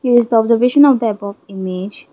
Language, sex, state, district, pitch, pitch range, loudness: English, female, Assam, Kamrup Metropolitan, 225 Hz, 200-245 Hz, -14 LUFS